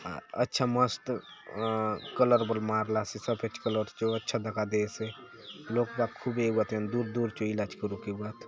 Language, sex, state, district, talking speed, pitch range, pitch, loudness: Halbi, male, Chhattisgarh, Bastar, 155 wpm, 110-120 Hz, 110 Hz, -31 LUFS